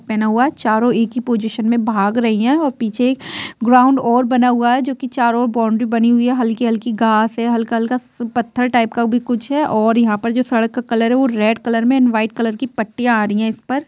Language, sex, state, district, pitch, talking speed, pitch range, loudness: Hindi, female, Bihar, Sitamarhi, 235 Hz, 250 wpm, 225-250 Hz, -16 LUFS